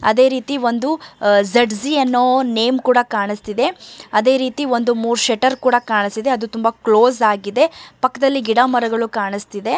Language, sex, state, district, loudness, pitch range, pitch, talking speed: Kannada, male, Karnataka, Mysore, -17 LUFS, 225-260 Hz, 245 Hz, 145 wpm